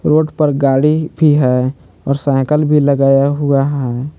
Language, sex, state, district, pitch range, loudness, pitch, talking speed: Hindi, male, Jharkhand, Palamu, 135-150 Hz, -13 LUFS, 140 Hz, 160 wpm